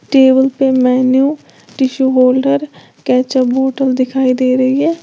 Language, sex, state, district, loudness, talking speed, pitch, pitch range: Hindi, female, Uttar Pradesh, Lalitpur, -13 LUFS, 155 wpm, 260 Hz, 255-270 Hz